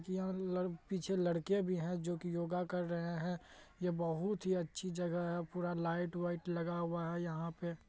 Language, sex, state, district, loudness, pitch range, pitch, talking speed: Hindi, male, Bihar, Madhepura, -39 LUFS, 170-180 Hz, 175 Hz, 220 wpm